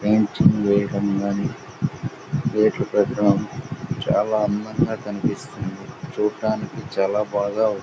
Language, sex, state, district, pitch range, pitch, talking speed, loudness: Telugu, male, Andhra Pradesh, Anantapur, 100-110 Hz, 105 Hz, 55 wpm, -22 LUFS